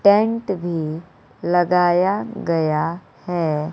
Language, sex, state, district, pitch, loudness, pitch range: Hindi, female, Bihar, West Champaran, 175 Hz, -20 LUFS, 165-195 Hz